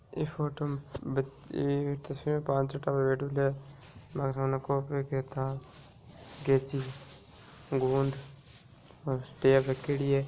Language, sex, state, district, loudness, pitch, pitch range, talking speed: Marwari, male, Rajasthan, Nagaur, -32 LUFS, 135 Hz, 135-140 Hz, 105 wpm